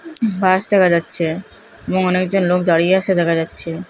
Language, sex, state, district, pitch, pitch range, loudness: Bengali, female, Assam, Hailakandi, 185 Hz, 170-190 Hz, -16 LUFS